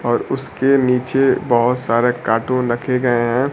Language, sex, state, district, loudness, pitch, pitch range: Hindi, male, Bihar, Kaimur, -17 LUFS, 125 Hz, 120-130 Hz